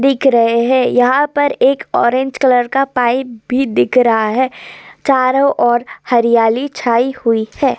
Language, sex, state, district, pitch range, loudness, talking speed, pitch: Hindi, female, Uttar Pradesh, Hamirpur, 235-270 Hz, -14 LUFS, 160 wpm, 255 Hz